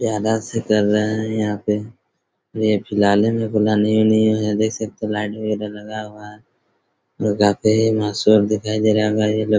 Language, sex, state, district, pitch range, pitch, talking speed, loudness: Hindi, male, Chhattisgarh, Raigarh, 105-110 Hz, 110 Hz, 170 wpm, -19 LUFS